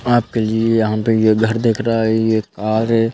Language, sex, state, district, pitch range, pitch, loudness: Hindi, male, Madhya Pradesh, Bhopal, 110-115 Hz, 110 Hz, -16 LUFS